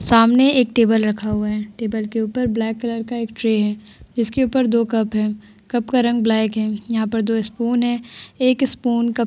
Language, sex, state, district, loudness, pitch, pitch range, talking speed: Hindi, female, Uttar Pradesh, Etah, -19 LUFS, 230 Hz, 220-240 Hz, 220 wpm